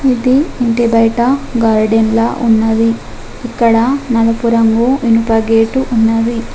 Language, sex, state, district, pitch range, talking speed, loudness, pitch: Telugu, female, Telangana, Adilabad, 225-245 Hz, 110 wpm, -12 LUFS, 230 Hz